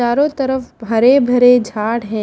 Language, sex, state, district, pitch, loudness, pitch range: Hindi, female, Haryana, Jhajjar, 245 Hz, -14 LUFS, 225-265 Hz